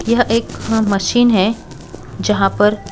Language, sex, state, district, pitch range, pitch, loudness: Hindi, female, Bihar, West Champaran, 205-230 Hz, 220 Hz, -15 LUFS